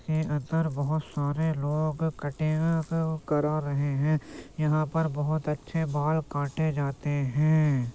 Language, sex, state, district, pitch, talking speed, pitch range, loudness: Hindi, male, Uttar Pradesh, Jyotiba Phule Nagar, 155 Hz, 120 wpm, 145-155 Hz, -28 LUFS